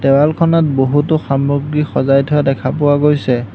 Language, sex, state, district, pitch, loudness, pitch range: Assamese, male, Assam, Hailakandi, 145 Hz, -14 LUFS, 135-150 Hz